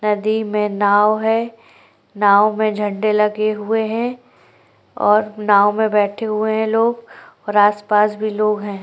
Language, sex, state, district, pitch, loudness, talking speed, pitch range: Hindi, female, Chhattisgarh, Korba, 215 Hz, -17 LUFS, 150 wpm, 210-220 Hz